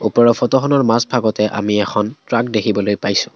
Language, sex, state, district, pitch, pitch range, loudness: Assamese, male, Assam, Kamrup Metropolitan, 110 Hz, 105-120 Hz, -16 LUFS